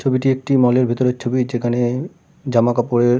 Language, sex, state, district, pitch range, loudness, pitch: Bengali, male, West Bengal, Kolkata, 120-130 Hz, -18 LUFS, 125 Hz